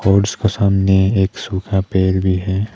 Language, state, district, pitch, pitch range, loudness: Hindi, Arunachal Pradesh, Papum Pare, 95 Hz, 95-100 Hz, -16 LUFS